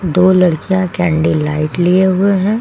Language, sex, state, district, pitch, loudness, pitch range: Hindi, female, Uttar Pradesh, Lucknow, 180 Hz, -13 LUFS, 165-190 Hz